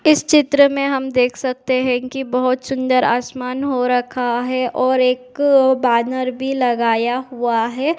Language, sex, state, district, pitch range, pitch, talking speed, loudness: Hindi, female, Uttar Pradesh, Deoria, 250-270 Hz, 255 Hz, 160 wpm, -17 LUFS